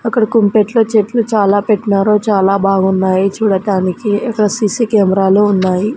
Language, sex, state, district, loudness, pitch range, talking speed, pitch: Telugu, female, Andhra Pradesh, Sri Satya Sai, -13 LUFS, 195-220 Hz, 130 wpm, 205 Hz